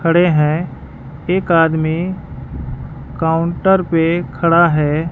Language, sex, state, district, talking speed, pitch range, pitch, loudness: Hindi, male, Bihar, West Champaran, 95 wpm, 160-175 Hz, 165 Hz, -15 LUFS